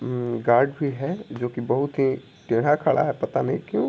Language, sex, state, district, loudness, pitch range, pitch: Hindi, male, Bihar, Sitamarhi, -24 LUFS, 120-140 Hz, 130 Hz